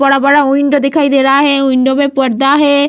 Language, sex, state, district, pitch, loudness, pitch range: Hindi, female, Bihar, Vaishali, 275 Hz, -10 LUFS, 270-285 Hz